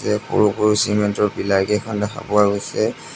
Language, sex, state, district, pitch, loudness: Assamese, male, Assam, Sonitpur, 105 Hz, -19 LUFS